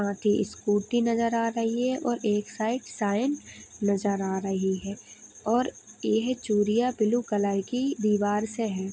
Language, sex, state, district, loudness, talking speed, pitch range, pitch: Hindi, female, Uttar Pradesh, Hamirpur, -27 LUFS, 150 wpm, 205-235 Hz, 215 Hz